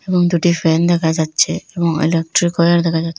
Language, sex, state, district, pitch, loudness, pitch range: Bengali, female, Assam, Hailakandi, 170 Hz, -15 LUFS, 160-175 Hz